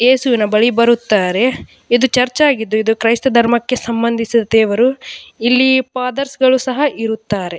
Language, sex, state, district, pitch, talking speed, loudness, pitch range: Kannada, female, Karnataka, Dakshina Kannada, 240 Hz, 135 wpm, -14 LUFS, 225-260 Hz